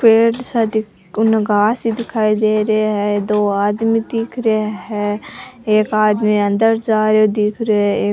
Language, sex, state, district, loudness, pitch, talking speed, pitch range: Rajasthani, female, Rajasthan, Churu, -16 LUFS, 215 Hz, 175 wpm, 210-225 Hz